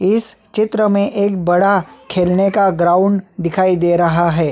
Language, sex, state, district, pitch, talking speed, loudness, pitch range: Hindi, male, Chhattisgarh, Sukma, 185 Hz, 175 wpm, -15 LUFS, 175-200 Hz